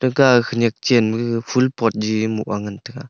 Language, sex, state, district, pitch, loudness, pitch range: Wancho, male, Arunachal Pradesh, Longding, 115 Hz, -18 LUFS, 110-125 Hz